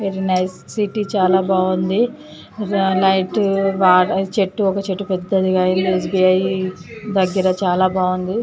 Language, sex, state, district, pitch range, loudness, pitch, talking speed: Telugu, female, Andhra Pradesh, Chittoor, 185-195 Hz, -18 LUFS, 190 Hz, 115 wpm